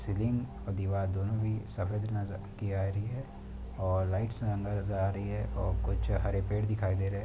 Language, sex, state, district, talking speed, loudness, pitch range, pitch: Hindi, male, Jharkhand, Sahebganj, 200 wpm, -33 LUFS, 95-105 Hz, 100 Hz